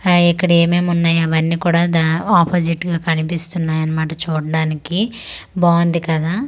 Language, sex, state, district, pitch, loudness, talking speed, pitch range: Telugu, female, Andhra Pradesh, Manyam, 170 Hz, -16 LUFS, 130 wpm, 160-175 Hz